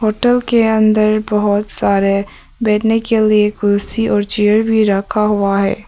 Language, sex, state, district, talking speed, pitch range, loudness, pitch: Hindi, female, Arunachal Pradesh, Papum Pare, 155 wpm, 205-220 Hz, -14 LUFS, 215 Hz